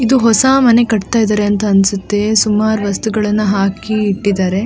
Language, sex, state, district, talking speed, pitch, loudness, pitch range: Kannada, female, Karnataka, Dakshina Kannada, 130 wpm, 210 Hz, -13 LUFS, 200-220 Hz